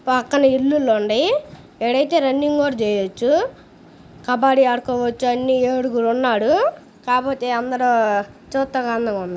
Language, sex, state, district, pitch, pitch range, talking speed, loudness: Telugu, female, Andhra Pradesh, Guntur, 250 Hz, 235-270 Hz, 110 wpm, -19 LUFS